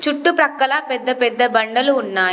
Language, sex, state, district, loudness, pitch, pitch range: Telugu, female, Telangana, Komaram Bheem, -17 LUFS, 255 Hz, 240-290 Hz